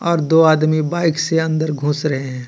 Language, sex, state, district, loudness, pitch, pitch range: Hindi, male, Jharkhand, Ranchi, -16 LUFS, 155 Hz, 150-165 Hz